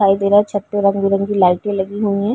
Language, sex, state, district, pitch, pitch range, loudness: Hindi, female, Uttar Pradesh, Varanasi, 200 Hz, 195-205 Hz, -16 LUFS